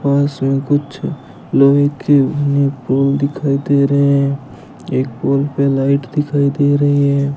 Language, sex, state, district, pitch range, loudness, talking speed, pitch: Hindi, male, Rajasthan, Bikaner, 140-145 Hz, -15 LUFS, 145 wpm, 140 Hz